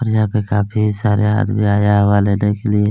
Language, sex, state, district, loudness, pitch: Hindi, male, Chhattisgarh, Kabirdham, -16 LUFS, 105 Hz